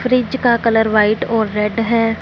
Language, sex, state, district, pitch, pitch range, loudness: Hindi, female, Punjab, Fazilka, 225 Hz, 220-240 Hz, -15 LUFS